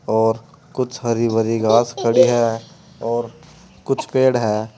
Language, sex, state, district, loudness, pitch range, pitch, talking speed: Hindi, male, Uttar Pradesh, Saharanpur, -18 LUFS, 115-130 Hz, 120 Hz, 140 wpm